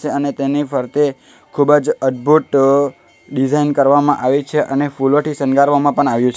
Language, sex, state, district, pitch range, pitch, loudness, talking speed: Gujarati, male, Gujarat, Valsad, 135-145 Hz, 140 Hz, -15 LUFS, 150 wpm